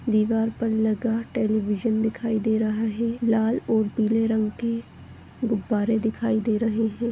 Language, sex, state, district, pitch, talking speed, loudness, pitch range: Hindi, female, Goa, North and South Goa, 225 Hz, 145 wpm, -24 LUFS, 220-230 Hz